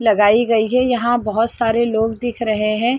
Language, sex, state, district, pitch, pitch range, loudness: Hindi, female, Chhattisgarh, Rajnandgaon, 230 Hz, 220-240 Hz, -17 LUFS